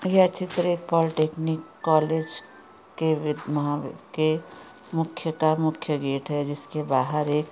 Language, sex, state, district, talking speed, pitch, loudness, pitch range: Hindi, female, Chhattisgarh, Raigarh, 120 wpm, 155 Hz, -25 LUFS, 150-165 Hz